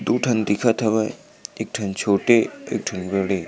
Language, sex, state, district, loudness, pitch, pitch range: Chhattisgarhi, male, Chhattisgarh, Sukma, -21 LUFS, 105 Hz, 95-115 Hz